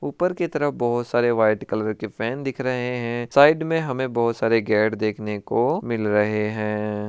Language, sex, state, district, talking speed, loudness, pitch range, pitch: Hindi, male, Rajasthan, Churu, 195 wpm, -22 LUFS, 110-130 Hz, 115 Hz